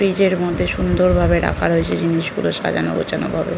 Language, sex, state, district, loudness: Bengali, female, West Bengal, North 24 Parganas, -18 LUFS